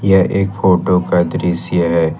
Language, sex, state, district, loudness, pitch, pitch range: Hindi, male, Jharkhand, Ranchi, -15 LUFS, 90 Hz, 85-95 Hz